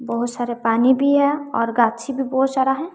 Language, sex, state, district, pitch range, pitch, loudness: Hindi, female, Bihar, West Champaran, 235-270 Hz, 260 Hz, -19 LUFS